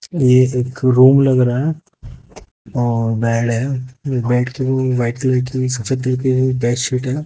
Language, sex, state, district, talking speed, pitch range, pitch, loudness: Hindi, male, Haryana, Jhajjar, 90 wpm, 125-130 Hz, 130 Hz, -16 LUFS